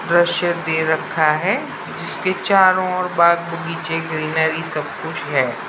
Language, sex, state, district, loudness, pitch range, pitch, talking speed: Hindi, male, Bihar, Saran, -19 LUFS, 160-175 Hz, 170 Hz, 150 wpm